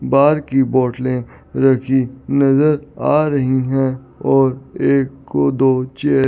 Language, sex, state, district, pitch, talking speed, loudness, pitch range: Hindi, male, Chandigarh, Chandigarh, 135 Hz, 125 wpm, -16 LUFS, 130-140 Hz